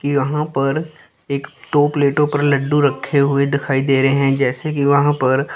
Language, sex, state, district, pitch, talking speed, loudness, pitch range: Hindi, female, Chandigarh, Chandigarh, 140 Hz, 195 wpm, -17 LUFS, 135-145 Hz